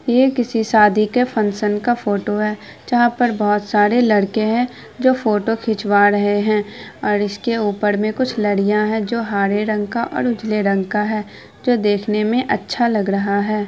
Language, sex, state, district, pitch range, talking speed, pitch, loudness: Hindi, female, Bihar, Araria, 205-235 Hz, 185 wpm, 215 Hz, -18 LUFS